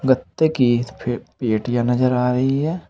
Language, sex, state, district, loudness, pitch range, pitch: Hindi, male, Uttar Pradesh, Saharanpur, -20 LUFS, 120-135 Hz, 125 Hz